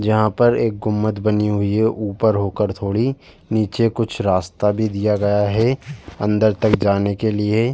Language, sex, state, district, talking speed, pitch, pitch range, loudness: Hindi, male, Uttar Pradesh, Jalaun, 170 wpm, 105 Hz, 100-110 Hz, -19 LUFS